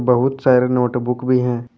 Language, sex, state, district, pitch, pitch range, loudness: Hindi, male, Jharkhand, Deoghar, 125 Hz, 125-130 Hz, -17 LUFS